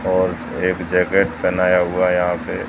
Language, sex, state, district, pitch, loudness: Hindi, male, Rajasthan, Jaisalmer, 90 Hz, -18 LUFS